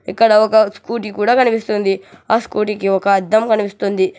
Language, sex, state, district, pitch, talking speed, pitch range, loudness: Telugu, male, Telangana, Hyderabad, 210 Hz, 155 wpm, 195-220 Hz, -15 LUFS